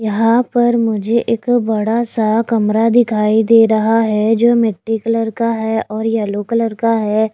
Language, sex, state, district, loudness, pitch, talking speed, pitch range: Hindi, female, Haryana, Jhajjar, -15 LUFS, 225 Hz, 170 wpm, 220-230 Hz